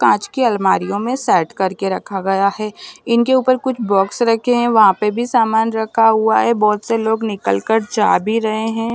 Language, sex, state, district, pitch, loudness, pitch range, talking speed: Hindi, male, Punjab, Fazilka, 220 Hz, -16 LUFS, 205-235 Hz, 210 wpm